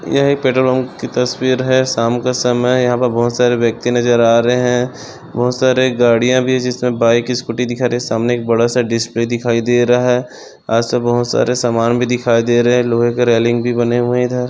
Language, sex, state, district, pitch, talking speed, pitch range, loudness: Hindi, male, Maharashtra, Sindhudurg, 120 Hz, 230 wpm, 120-125 Hz, -15 LUFS